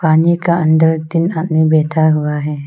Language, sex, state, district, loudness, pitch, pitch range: Hindi, female, Arunachal Pradesh, Lower Dibang Valley, -14 LUFS, 160 Hz, 155-165 Hz